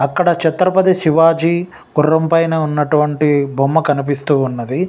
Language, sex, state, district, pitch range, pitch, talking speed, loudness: Telugu, male, Telangana, Nalgonda, 145-165 Hz, 155 Hz, 110 wpm, -14 LUFS